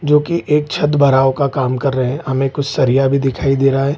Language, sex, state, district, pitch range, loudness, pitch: Hindi, male, Bihar, Gaya, 135-145 Hz, -15 LUFS, 135 Hz